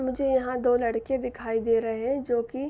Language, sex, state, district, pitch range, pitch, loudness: Hindi, female, Jharkhand, Sahebganj, 230-265 Hz, 245 Hz, -26 LUFS